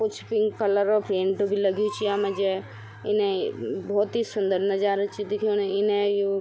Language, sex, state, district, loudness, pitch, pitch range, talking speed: Garhwali, female, Uttarakhand, Tehri Garhwal, -25 LUFS, 205 Hz, 200-215 Hz, 185 wpm